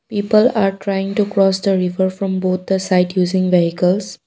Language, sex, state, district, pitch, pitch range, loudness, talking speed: English, female, Assam, Kamrup Metropolitan, 190 Hz, 185-195 Hz, -17 LUFS, 180 wpm